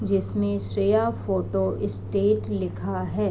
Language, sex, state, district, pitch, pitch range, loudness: Hindi, female, Uttar Pradesh, Varanasi, 100 Hz, 95-105 Hz, -25 LUFS